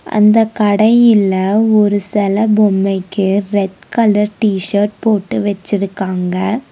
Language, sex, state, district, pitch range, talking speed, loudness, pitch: Tamil, female, Tamil Nadu, Nilgiris, 195-215 Hz, 90 wpm, -13 LUFS, 205 Hz